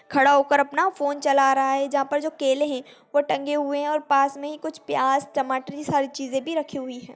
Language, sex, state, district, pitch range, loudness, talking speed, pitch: Hindi, female, Chhattisgarh, Kabirdham, 270-290 Hz, -23 LUFS, 210 wpm, 280 Hz